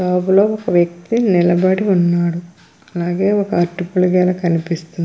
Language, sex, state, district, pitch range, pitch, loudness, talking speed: Telugu, female, Andhra Pradesh, Krishna, 175-190 Hz, 180 Hz, -16 LUFS, 130 wpm